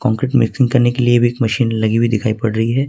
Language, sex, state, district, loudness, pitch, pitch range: Hindi, male, Jharkhand, Ranchi, -15 LUFS, 120 Hz, 110-125 Hz